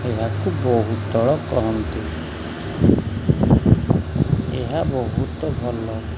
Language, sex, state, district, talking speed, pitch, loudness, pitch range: Odia, male, Odisha, Khordha, 60 wpm, 110 Hz, -21 LUFS, 80-115 Hz